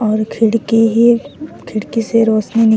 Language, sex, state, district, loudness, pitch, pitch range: Sadri, female, Chhattisgarh, Jashpur, -14 LUFS, 225 Hz, 220-230 Hz